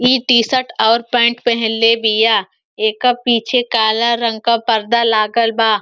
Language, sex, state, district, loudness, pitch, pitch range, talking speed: Bhojpuri, female, Uttar Pradesh, Ghazipur, -14 LUFS, 235 Hz, 225-245 Hz, 155 wpm